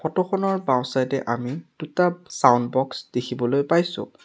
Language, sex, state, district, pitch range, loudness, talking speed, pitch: Assamese, male, Assam, Sonitpur, 125-175 Hz, -23 LUFS, 155 wpm, 135 Hz